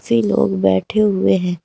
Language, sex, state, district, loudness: Hindi, female, Jharkhand, Garhwa, -16 LUFS